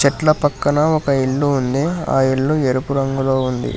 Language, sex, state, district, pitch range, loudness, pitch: Telugu, male, Telangana, Hyderabad, 135-145 Hz, -17 LUFS, 140 Hz